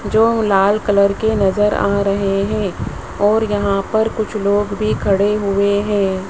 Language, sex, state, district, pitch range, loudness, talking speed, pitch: Hindi, male, Rajasthan, Jaipur, 200-215 Hz, -16 LUFS, 160 wpm, 205 Hz